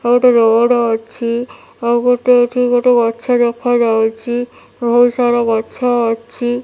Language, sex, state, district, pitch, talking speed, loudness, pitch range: Odia, female, Odisha, Nuapada, 240 Hz, 125 wpm, -14 LUFS, 235-245 Hz